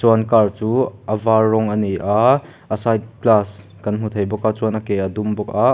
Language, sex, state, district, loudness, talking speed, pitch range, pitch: Mizo, male, Mizoram, Aizawl, -18 LUFS, 240 wpm, 105-110 Hz, 110 Hz